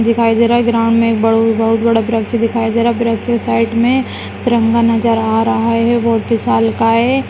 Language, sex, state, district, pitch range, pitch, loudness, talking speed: Hindi, female, Rajasthan, Nagaur, 225-235 Hz, 230 Hz, -13 LUFS, 215 wpm